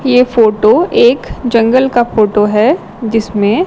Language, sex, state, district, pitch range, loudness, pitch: Hindi, female, Chhattisgarh, Raipur, 215-260 Hz, -11 LUFS, 235 Hz